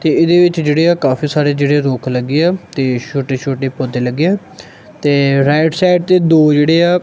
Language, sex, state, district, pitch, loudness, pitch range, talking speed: Punjabi, male, Punjab, Kapurthala, 150 Hz, -13 LUFS, 135-170 Hz, 205 wpm